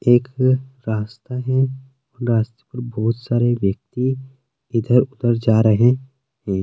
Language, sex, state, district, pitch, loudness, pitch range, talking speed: Hindi, male, Maharashtra, Sindhudurg, 125 Hz, -20 LUFS, 115-130 Hz, 120 wpm